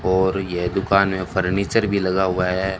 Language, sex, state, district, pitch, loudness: Hindi, male, Rajasthan, Bikaner, 95 Hz, -20 LUFS